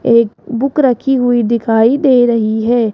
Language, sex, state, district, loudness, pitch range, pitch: Hindi, female, Rajasthan, Jaipur, -12 LUFS, 230-260 Hz, 235 Hz